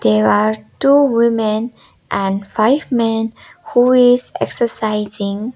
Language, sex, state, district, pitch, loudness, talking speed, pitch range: English, female, Sikkim, Gangtok, 225 Hz, -15 LUFS, 110 wpm, 210-245 Hz